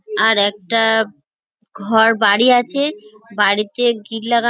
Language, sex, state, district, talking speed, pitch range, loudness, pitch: Bengali, female, West Bengal, Dakshin Dinajpur, 105 wpm, 210-235 Hz, -15 LUFS, 220 Hz